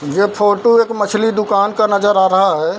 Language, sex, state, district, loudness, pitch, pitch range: Hindi, male, Bihar, Darbhanga, -14 LUFS, 205 Hz, 200-215 Hz